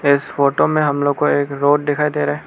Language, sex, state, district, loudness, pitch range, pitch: Hindi, male, Arunachal Pradesh, Lower Dibang Valley, -17 LUFS, 140-150 Hz, 145 Hz